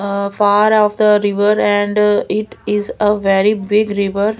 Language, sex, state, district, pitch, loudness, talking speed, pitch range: English, female, Maharashtra, Gondia, 205 Hz, -14 LUFS, 165 wpm, 205-210 Hz